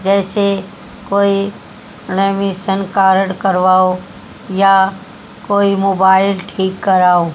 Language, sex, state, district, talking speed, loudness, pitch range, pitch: Hindi, female, Haryana, Charkhi Dadri, 80 wpm, -14 LUFS, 190-200 Hz, 195 Hz